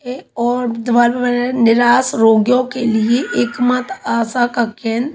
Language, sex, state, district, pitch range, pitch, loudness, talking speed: Hindi, female, Haryana, Charkhi Dadri, 230-250 Hz, 245 Hz, -15 LUFS, 115 wpm